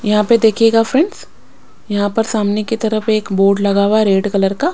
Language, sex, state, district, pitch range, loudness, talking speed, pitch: Hindi, female, Maharashtra, Mumbai Suburban, 205-225 Hz, -14 LUFS, 215 wpm, 215 Hz